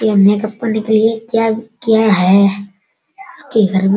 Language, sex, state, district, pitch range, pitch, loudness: Hindi, male, Bihar, Sitamarhi, 200-225 Hz, 220 Hz, -14 LUFS